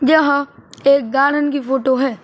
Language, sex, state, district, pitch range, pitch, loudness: Hindi, male, Maharashtra, Mumbai Suburban, 270-285 Hz, 275 Hz, -16 LUFS